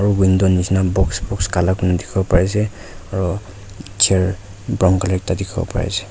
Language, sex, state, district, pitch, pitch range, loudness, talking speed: Nagamese, male, Nagaland, Kohima, 95 Hz, 95-100 Hz, -18 LUFS, 185 wpm